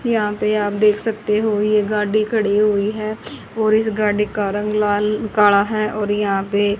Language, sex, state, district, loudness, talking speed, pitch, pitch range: Hindi, female, Haryana, Jhajjar, -18 LUFS, 195 wpm, 210 Hz, 205-215 Hz